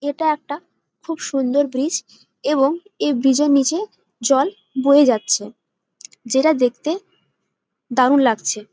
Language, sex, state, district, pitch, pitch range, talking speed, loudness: Bengali, female, West Bengal, Jalpaiguri, 275 Hz, 250-300 Hz, 115 wpm, -18 LUFS